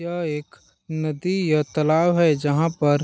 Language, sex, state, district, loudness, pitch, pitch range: Hindi, male, Chhattisgarh, Balrampur, -21 LUFS, 155 Hz, 150-170 Hz